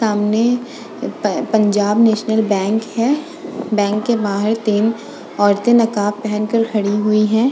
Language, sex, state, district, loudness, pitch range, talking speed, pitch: Hindi, female, Uttar Pradesh, Budaun, -17 LUFS, 210-230 Hz, 130 wpm, 220 Hz